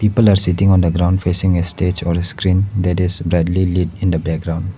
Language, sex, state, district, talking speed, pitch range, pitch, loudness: English, male, Arunachal Pradesh, Lower Dibang Valley, 225 wpm, 85-95 Hz, 90 Hz, -16 LUFS